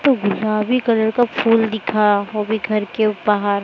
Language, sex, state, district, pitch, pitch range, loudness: Hindi, male, Maharashtra, Mumbai Suburban, 215 Hz, 210-225 Hz, -18 LUFS